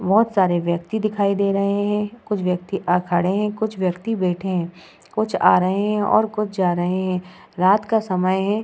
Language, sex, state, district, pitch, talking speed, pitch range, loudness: Hindi, female, Bihar, Vaishali, 195 Hz, 195 wpm, 180-210 Hz, -20 LUFS